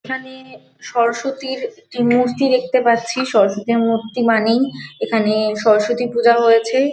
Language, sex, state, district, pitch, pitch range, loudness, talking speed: Bengali, female, West Bengal, Malda, 235 Hz, 230-260 Hz, -17 LUFS, 105 wpm